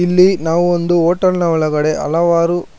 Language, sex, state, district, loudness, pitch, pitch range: Kannada, male, Karnataka, Bangalore, -14 LUFS, 170 Hz, 165-175 Hz